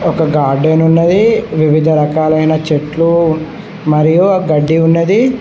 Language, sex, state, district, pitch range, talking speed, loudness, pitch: Telugu, male, Telangana, Mahabubabad, 155-170 Hz, 100 wpm, -11 LUFS, 160 Hz